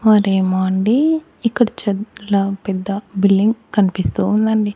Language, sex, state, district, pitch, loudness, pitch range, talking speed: Telugu, male, Andhra Pradesh, Annamaya, 205 Hz, -17 LUFS, 195-220 Hz, 100 wpm